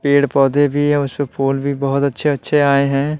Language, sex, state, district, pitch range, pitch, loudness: Hindi, male, Bihar, West Champaran, 140-145 Hz, 140 Hz, -16 LUFS